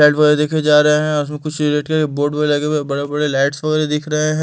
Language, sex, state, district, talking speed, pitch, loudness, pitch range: Hindi, male, Delhi, New Delhi, 205 wpm, 150 Hz, -16 LUFS, 150-155 Hz